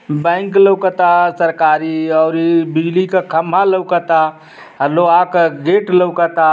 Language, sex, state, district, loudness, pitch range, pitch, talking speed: Bhojpuri, male, Uttar Pradesh, Ghazipur, -13 LUFS, 160-180 Hz, 170 Hz, 120 wpm